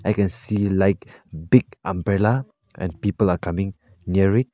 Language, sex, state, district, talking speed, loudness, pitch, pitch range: English, male, Arunachal Pradesh, Lower Dibang Valley, 160 wpm, -22 LUFS, 100 Hz, 95-105 Hz